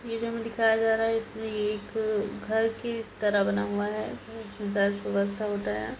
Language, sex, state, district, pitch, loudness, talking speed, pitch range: Hindi, female, Bihar, Purnia, 215 Hz, -28 LUFS, 190 wpm, 205-225 Hz